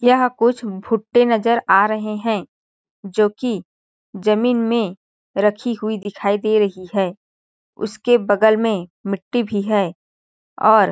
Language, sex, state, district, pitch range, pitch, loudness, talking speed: Hindi, female, Chhattisgarh, Balrampur, 195-230 Hz, 215 Hz, -19 LUFS, 135 wpm